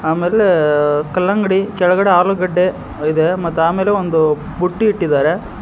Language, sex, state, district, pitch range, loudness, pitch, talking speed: Kannada, male, Karnataka, Koppal, 160-190 Hz, -15 LUFS, 180 Hz, 105 wpm